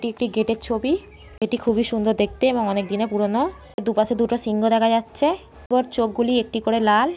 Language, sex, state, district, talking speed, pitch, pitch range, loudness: Bengali, female, West Bengal, Jhargram, 195 wpm, 230 Hz, 220-240 Hz, -22 LUFS